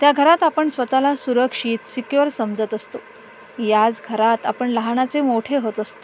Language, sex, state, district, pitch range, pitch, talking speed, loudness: Marathi, female, Maharashtra, Sindhudurg, 225-290 Hz, 250 Hz, 150 wpm, -19 LUFS